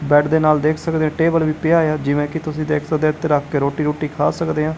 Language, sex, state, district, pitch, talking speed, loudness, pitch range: Punjabi, male, Punjab, Kapurthala, 155 Hz, 300 wpm, -18 LUFS, 150-160 Hz